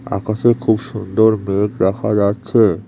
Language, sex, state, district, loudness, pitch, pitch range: Bengali, male, West Bengal, Cooch Behar, -16 LUFS, 105 Hz, 100-110 Hz